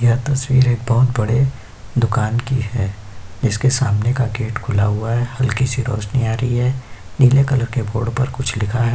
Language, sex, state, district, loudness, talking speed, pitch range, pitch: Hindi, male, Uttar Pradesh, Jyotiba Phule Nagar, -18 LUFS, 195 wpm, 110-130 Hz, 120 Hz